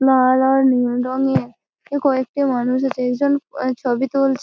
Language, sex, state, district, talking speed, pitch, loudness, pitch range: Bengali, female, West Bengal, Malda, 110 wpm, 260 Hz, -18 LUFS, 255-270 Hz